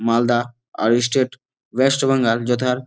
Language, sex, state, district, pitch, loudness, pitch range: Bengali, male, West Bengal, Malda, 120 Hz, -19 LUFS, 120-130 Hz